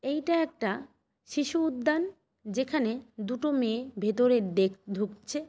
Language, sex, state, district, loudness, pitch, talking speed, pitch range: Bengali, female, West Bengal, Malda, -29 LUFS, 250 Hz, 110 wpm, 215-300 Hz